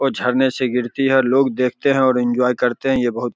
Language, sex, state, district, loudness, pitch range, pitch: Hindi, male, Bihar, Begusarai, -18 LUFS, 125-135 Hz, 125 Hz